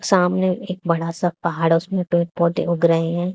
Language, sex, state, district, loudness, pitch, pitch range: Hindi, female, Haryana, Charkhi Dadri, -20 LUFS, 170 Hz, 170-185 Hz